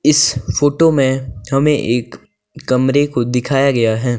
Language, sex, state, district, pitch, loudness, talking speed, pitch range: Hindi, male, Himachal Pradesh, Shimla, 130 Hz, -15 LUFS, 145 wpm, 120-145 Hz